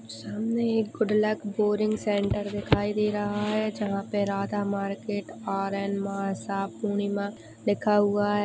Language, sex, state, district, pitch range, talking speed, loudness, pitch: Hindi, female, Bihar, Purnia, 200-210 Hz, 140 wpm, -28 LUFS, 205 Hz